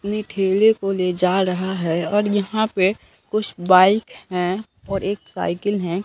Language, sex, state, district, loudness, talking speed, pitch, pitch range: Hindi, female, Bihar, Katihar, -20 LUFS, 170 wpm, 195 Hz, 185-205 Hz